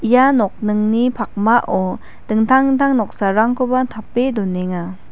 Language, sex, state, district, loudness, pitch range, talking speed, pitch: Garo, female, Meghalaya, West Garo Hills, -17 LUFS, 205-255 Hz, 95 wpm, 225 Hz